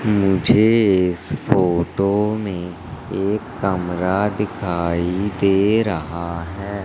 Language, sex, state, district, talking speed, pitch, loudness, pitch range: Hindi, male, Madhya Pradesh, Katni, 90 wpm, 95 Hz, -19 LUFS, 90-105 Hz